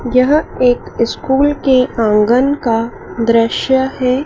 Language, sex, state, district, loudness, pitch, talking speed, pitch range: Hindi, female, Madhya Pradesh, Dhar, -14 LUFS, 250 Hz, 110 wpm, 230-265 Hz